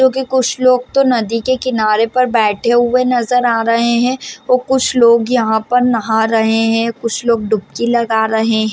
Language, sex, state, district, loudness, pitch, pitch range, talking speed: Hindi, female, Maharashtra, Chandrapur, -14 LUFS, 235 Hz, 225-255 Hz, 185 wpm